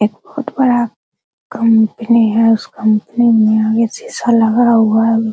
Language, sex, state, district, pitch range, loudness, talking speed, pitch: Hindi, female, Bihar, Araria, 220-240 Hz, -13 LUFS, 145 wpm, 225 Hz